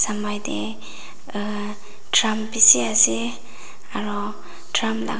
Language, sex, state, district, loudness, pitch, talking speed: Nagamese, female, Nagaland, Dimapur, -20 LUFS, 205 Hz, 90 wpm